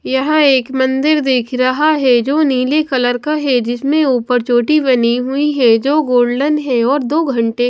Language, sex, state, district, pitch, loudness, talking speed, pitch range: Hindi, female, Maharashtra, Washim, 265 Hz, -14 LUFS, 180 wpm, 245-295 Hz